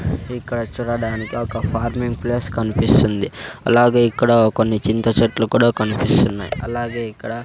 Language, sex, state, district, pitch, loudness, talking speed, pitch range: Telugu, male, Andhra Pradesh, Sri Satya Sai, 115 Hz, -18 LUFS, 120 wpm, 110-120 Hz